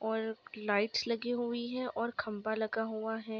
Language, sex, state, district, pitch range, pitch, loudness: Hindi, female, Bihar, Kishanganj, 220-235 Hz, 225 Hz, -35 LUFS